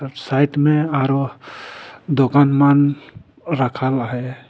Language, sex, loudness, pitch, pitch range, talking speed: Sadri, male, -17 LUFS, 140 Hz, 130-145 Hz, 105 wpm